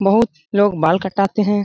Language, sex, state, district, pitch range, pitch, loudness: Hindi, male, Bihar, Darbhanga, 190-205 Hz, 200 Hz, -17 LUFS